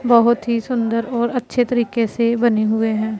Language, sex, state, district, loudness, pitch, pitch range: Hindi, female, Punjab, Pathankot, -18 LUFS, 235 Hz, 225-240 Hz